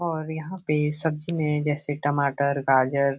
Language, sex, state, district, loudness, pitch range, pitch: Hindi, male, Bihar, Jahanabad, -25 LUFS, 140-160 Hz, 150 Hz